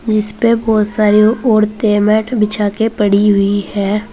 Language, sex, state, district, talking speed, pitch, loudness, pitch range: Hindi, female, Uttar Pradesh, Saharanpur, 160 wpm, 215 Hz, -13 LUFS, 205-220 Hz